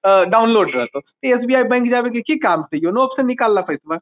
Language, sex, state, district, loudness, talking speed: Magahi, male, Bihar, Lakhisarai, -16 LUFS, 270 wpm